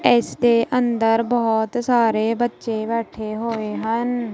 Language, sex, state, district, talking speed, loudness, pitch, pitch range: Punjabi, female, Punjab, Kapurthala, 125 wpm, -20 LUFS, 230 Hz, 225-240 Hz